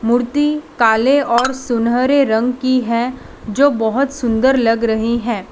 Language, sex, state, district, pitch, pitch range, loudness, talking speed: Hindi, female, Gujarat, Valsad, 240 Hz, 230-265 Hz, -15 LUFS, 140 wpm